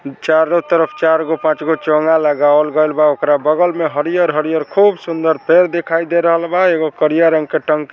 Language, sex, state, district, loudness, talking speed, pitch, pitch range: Bhojpuri, male, Bihar, Saran, -14 LUFS, 205 wpm, 160 Hz, 155-170 Hz